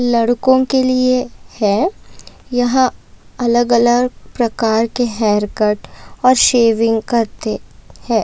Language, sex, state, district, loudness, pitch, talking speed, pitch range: Hindi, female, Maharashtra, Aurangabad, -15 LUFS, 240 Hz, 95 wpm, 225-255 Hz